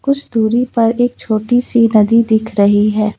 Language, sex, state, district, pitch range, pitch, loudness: Hindi, female, West Bengal, Alipurduar, 215-245 Hz, 225 Hz, -13 LUFS